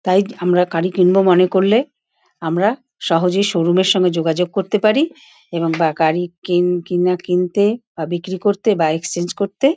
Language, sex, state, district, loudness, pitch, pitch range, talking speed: Bengali, female, West Bengal, Paschim Medinipur, -17 LUFS, 180 Hz, 175-205 Hz, 165 wpm